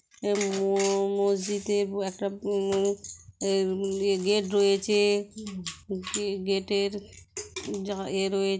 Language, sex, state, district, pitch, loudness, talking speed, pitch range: Bengali, female, West Bengal, Kolkata, 200 Hz, -27 LUFS, 55 wpm, 195-205 Hz